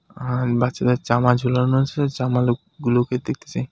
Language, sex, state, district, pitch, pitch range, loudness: Bengali, male, West Bengal, Alipurduar, 125 Hz, 125-130 Hz, -21 LUFS